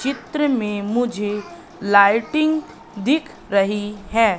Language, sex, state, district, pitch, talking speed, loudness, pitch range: Hindi, female, Madhya Pradesh, Katni, 225 Hz, 95 wpm, -20 LUFS, 205-275 Hz